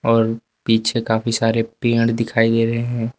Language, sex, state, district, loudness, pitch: Hindi, male, Uttar Pradesh, Lucknow, -19 LUFS, 115 Hz